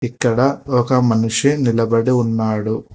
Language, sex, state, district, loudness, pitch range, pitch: Telugu, male, Telangana, Hyderabad, -17 LUFS, 115-130 Hz, 120 Hz